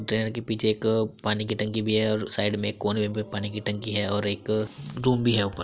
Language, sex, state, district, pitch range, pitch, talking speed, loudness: Hindi, male, Uttar Pradesh, Muzaffarnagar, 105-110 Hz, 105 Hz, 265 wpm, -26 LUFS